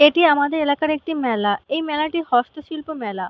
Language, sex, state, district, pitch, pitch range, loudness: Bengali, female, West Bengal, North 24 Parganas, 300 Hz, 250-310 Hz, -20 LUFS